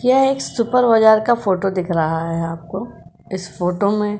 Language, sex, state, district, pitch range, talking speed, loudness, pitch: Hindi, female, Uttar Pradesh, Jyotiba Phule Nagar, 175-230 Hz, 200 wpm, -18 LUFS, 195 Hz